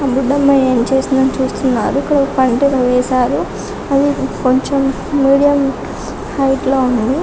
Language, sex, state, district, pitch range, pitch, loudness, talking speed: Telugu, female, Telangana, Karimnagar, 255-275 Hz, 270 Hz, -14 LUFS, 140 wpm